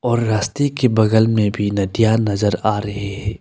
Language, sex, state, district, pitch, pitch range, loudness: Hindi, male, Arunachal Pradesh, Longding, 110 Hz, 105-115 Hz, -18 LUFS